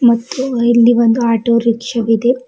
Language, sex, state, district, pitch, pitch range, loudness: Kannada, female, Karnataka, Bidar, 235 Hz, 230-240 Hz, -13 LUFS